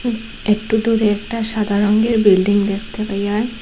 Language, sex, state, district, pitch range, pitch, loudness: Bengali, female, Assam, Hailakandi, 205-225 Hz, 215 Hz, -17 LUFS